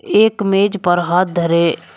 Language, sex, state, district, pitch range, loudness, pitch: Hindi, male, Uttar Pradesh, Shamli, 175-205 Hz, -15 LUFS, 185 Hz